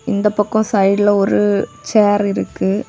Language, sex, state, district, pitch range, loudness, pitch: Tamil, female, Tamil Nadu, Kanyakumari, 200-210 Hz, -15 LUFS, 205 Hz